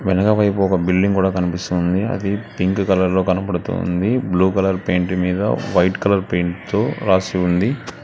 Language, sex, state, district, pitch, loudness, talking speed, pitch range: Telugu, male, Telangana, Hyderabad, 95 Hz, -18 LUFS, 150 wpm, 90-100 Hz